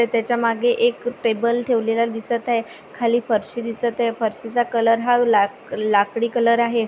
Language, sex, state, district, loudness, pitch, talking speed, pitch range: Marathi, female, Maharashtra, Pune, -20 LUFS, 235 Hz, 140 wpm, 230-240 Hz